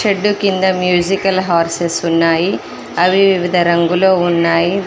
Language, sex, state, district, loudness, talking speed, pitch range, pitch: Telugu, female, Telangana, Mahabubabad, -14 LUFS, 110 wpm, 170-190 Hz, 180 Hz